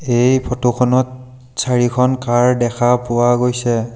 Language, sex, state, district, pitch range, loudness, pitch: Assamese, male, Assam, Sonitpur, 120-125 Hz, -16 LUFS, 125 Hz